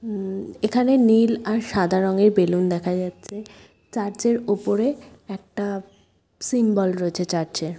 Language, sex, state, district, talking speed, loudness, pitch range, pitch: Bengali, female, West Bengal, Kolkata, 130 wpm, -22 LUFS, 185-225 Hz, 205 Hz